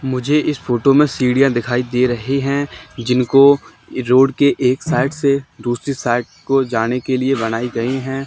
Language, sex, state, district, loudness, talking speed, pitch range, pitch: Hindi, male, Haryana, Charkhi Dadri, -16 LUFS, 175 wpm, 125-140 Hz, 130 Hz